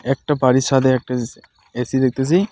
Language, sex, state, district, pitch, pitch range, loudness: Bengali, male, West Bengal, Alipurduar, 130 Hz, 125-135 Hz, -18 LUFS